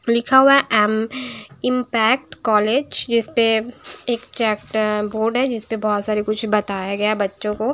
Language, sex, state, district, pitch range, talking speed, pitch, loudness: Hindi, female, Bihar, Patna, 210-245 Hz, 180 wpm, 220 Hz, -19 LUFS